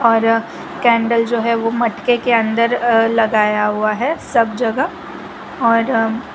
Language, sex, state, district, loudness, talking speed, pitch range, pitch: Hindi, female, Gujarat, Valsad, -16 LUFS, 130 wpm, 225-235 Hz, 230 Hz